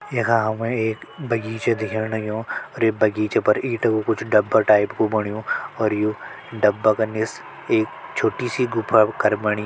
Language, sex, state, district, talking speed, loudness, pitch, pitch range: Hindi, male, Uttarakhand, Tehri Garhwal, 175 wpm, -21 LUFS, 110 Hz, 105-115 Hz